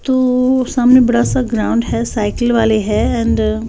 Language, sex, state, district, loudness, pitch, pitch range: Hindi, female, Bihar, West Champaran, -14 LUFS, 235 Hz, 220-250 Hz